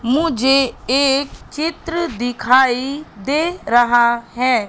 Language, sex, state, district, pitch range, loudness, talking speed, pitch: Hindi, female, Madhya Pradesh, Katni, 240-300 Hz, -17 LUFS, 90 wpm, 265 Hz